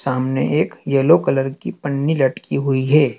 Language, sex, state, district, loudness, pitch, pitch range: Hindi, male, Madhya Pradesh, Dhar, -18 LUFS, 135 Hz, 130-145 Hz